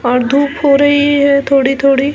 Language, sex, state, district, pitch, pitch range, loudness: Hindi, female, Chhattisgarh, Balrampur, 280 Hz, 270-285 Hz, -11 LUFS